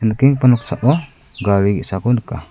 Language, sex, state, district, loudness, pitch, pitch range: Garo, male, Meghalaya, South Garo Hills, -16 LUFS, 125 Hz, 110-135 Hz